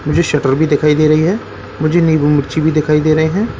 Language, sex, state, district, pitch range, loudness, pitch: Hindi, male, Bihar, Katihar, 150-160 Hz, -13 LUFS, 155 Hz